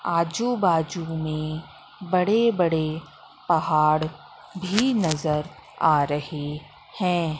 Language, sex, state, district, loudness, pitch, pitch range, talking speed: Hindi, female, Madhya Pradesh, Katni, -24 LUFS, 160 Hz, 155-180 Hz, 80 wpm